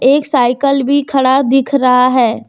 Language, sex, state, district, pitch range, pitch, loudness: Hindi, female, Jharkhand, Deoghar, 250-275 Hz, 265 Hz, -12 LUFS